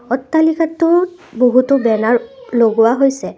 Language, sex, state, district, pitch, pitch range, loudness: Assamese, female, Assam, Kamrup Metropolitan, 265 Hz, 240-325 Hz, -14 LUFS